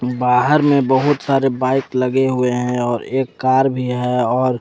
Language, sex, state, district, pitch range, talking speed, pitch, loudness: Hindi, male, Jharkhand, Ranchi, 125-135 Hz, 180 wpm, 130 Hz, -17 LUFS